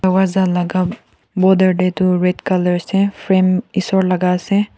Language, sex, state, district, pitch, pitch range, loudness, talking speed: Nagamese, female, Nagaland, Kohima, 185 Hz, 180-190 Hz, -16 LUFS, 150 wpm